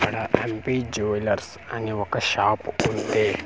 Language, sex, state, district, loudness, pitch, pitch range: Telugu, male, Andhra Pradesh, Manyam, -24 LUFS, 110 Hz, 105-120 Hz